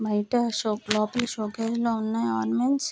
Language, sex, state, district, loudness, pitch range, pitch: Telugu, female, Andhra Pradesh, Manyam, -26 LUFS, 215-235 Hz, 220 Hz